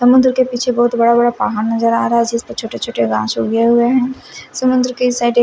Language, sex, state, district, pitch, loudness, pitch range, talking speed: Hindi, male, Punjab, Fazilka, 240 Hz, -15 LUFS, 230-250 Hz, 230 wpm